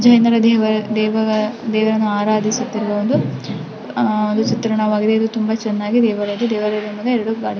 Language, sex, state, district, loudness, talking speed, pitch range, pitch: Kannada, female, Karnataka, Mysore, -17 LUFS, 80 wpm, 215-225 Hz, 215 Hz